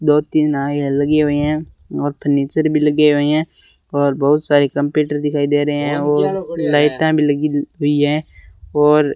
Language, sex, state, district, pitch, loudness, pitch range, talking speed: Hindi, male, Rajasthan, Bikaner, 145 Hz, -16 LUFS, 145-150 Hz, 190 wpm